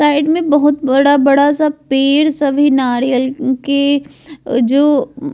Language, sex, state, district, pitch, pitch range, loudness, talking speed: Bajjika, female, Bihar, Vaishali, 285 Hz, 270-295 Hz, -13 LUFS, 135 wpm